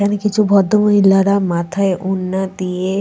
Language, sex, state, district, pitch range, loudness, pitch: Bengali, female, West Bengal, Purulia, 185-200 Hz, -15 LUFS, 195 Hz